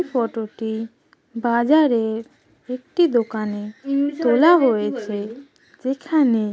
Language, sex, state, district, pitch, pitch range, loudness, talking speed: Bengali, female, West Bengal, Paschim Medinipur, 240 Hz, 220-285 Hz, -20 LUFS, 85 wpm